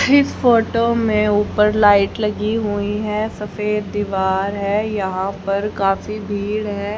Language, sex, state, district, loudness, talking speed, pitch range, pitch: Hindi, female, Haryana, Jhajjar, -18 LUFS, 135 wpm, 200-215 Hz, 210 Hz